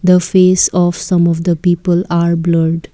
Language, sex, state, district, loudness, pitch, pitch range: English, female, Assam, Kamrup Metropolitan, -13 LUFS, 175 Hz, 170-180 Hz